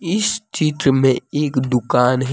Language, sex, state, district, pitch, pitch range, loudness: Hindi, male, Jharkhand, Deoghar, 140 Hz, 130-155 Hz, -18 LUFS